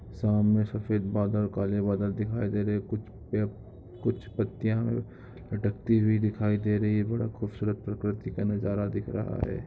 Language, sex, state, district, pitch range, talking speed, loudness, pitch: Hindi, male, Goa, North and South Goa, 100-110 Hz, 165 wpm, -29 LUFS, 105 Hz